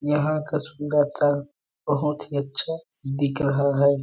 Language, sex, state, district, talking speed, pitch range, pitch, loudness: Hindi, male, Chhattisgarh, Balrampur, 135 wpm, 140-150 Hz, 145 Hz, -24 LUFS